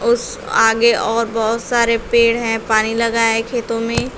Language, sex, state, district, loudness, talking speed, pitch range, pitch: Hindi, female, Uttar Pradesh, Shamli, -16 LUFS, 170 wpm, 225-235 Hz, 230 Hz